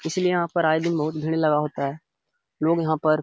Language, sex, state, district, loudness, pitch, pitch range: Hindi, male, Bihar, Jamui, -23 LUFS, 155 Hz, 155-165 Hz